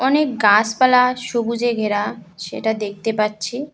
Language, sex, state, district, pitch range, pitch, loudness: Bengali, female, West Bengal, Cooch Behar, 210-250 Hz, 225 Hz, -18 LUFS